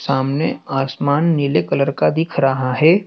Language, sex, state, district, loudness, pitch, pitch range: Hindi, male, Madhya Pradesh, Dhar, -17 LUFS, 140 Hz, 135-160 Hz